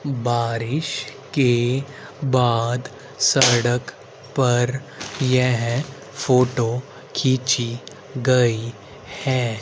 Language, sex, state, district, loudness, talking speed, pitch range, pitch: Hindi, male, Haryana, Rohtak, -21 LUFS, 60 wpm, 120-135 Hz, 125 Hz